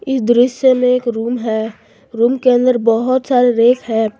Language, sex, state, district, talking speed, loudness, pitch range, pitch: Hindi, female, Jharkhand, Garhwa, 185 wpm, -14 LUFS, 230-255 Hz, 245 Hz